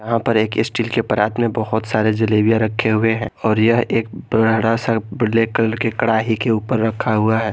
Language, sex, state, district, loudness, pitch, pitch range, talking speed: Hindi, male, Jharkhand, Garhwa, -18 LUFS, 110 Hz, 110-115 Hz, 215 wpm